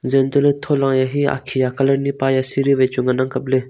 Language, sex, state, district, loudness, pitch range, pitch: Wancho, male, Arunachal Pradesh, Longding, -17 LUFS, 130-140 Hz, 135 Hz